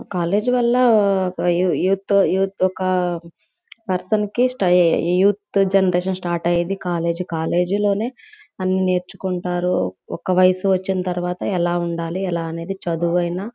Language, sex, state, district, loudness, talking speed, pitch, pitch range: Telugu, female, Andhra Pradesh, Guntur, -20 LUFS, 130 wpm, 185 Hz, 175-195 Hz